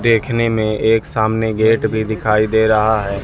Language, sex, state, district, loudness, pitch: Hindi, male, Madhya Pradesh, Katni, -16 LUFS, 110 Hz